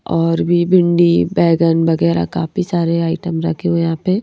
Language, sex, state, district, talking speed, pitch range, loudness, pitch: Hindi, female, Madhya Pradesh, Bhopal, 185 wpm, 165-175 Hz, -15 LUFS, 165 Hz